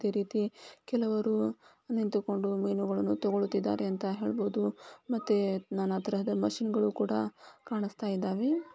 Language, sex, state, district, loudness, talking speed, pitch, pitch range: Kannada, female, Karnataka, Belgaum, -32 LUFS, 115 wpm, 200 Hz, 190-215 Hz